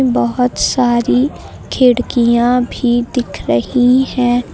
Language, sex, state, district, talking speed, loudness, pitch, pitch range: Hindi, female, Uttar Pradesh, Lucknow, 90 wpm, -14 LUFS, 245 Hz, 240-250 Hz